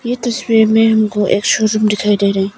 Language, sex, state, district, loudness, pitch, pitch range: Hindi, female, Arunachal Pradesh, Papum Pare, -13 LUFS, 215 Hz, 205-225 Hz